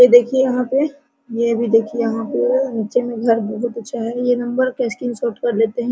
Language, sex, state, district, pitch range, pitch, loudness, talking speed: Hindi, female, Jharkhand, Sahebganj, 230-250 Hz, 240 Hz, -18 LUFS, 215 wpm